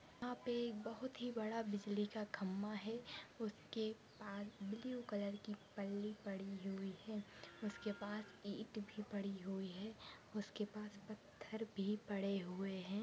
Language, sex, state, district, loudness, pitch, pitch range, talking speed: Hindi, female, Maharashtra, Sindhudurg, -47 LUFS, 210 Hz, 200-220 Hz, 145 wpm